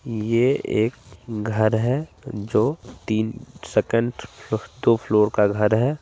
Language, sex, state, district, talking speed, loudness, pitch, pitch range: Hindi, male, Bihar, Gopalganj, 130 wpm, -22 LUFS, 115 Hz, 110-125 Hz